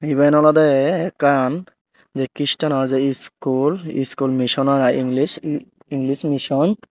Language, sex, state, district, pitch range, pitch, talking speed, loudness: Chakma, male, Tripura, Dhalai, 135-150 Hz, 140 Hz, 115 wpm, -18 LUFS